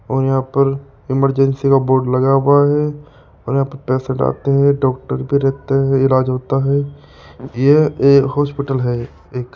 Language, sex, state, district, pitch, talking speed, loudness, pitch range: Hindi, male, Rajasthan, Jaipur, 135 Hz, 165 wpm, -16 LUFS, 130-140 Hz